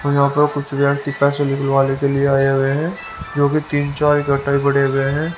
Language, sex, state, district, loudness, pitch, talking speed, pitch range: Hindi, male, Haryana, Rohtak, -17 LUFS, 140 Hz, 235 wpm, 140-145 Hz